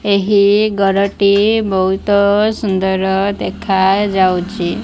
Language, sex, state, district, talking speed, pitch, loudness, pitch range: Odia, female, Odisha, Malkangiri, 60 wpm, 200 Hz, -14 LUFS, 190-205 Hz